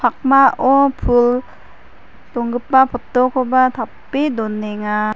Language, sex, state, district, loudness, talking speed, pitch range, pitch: Garo, female, Meghalaya, West Garo Hills, -16 LUFS, 60 wpm, 235-265 Hz, 250 Hz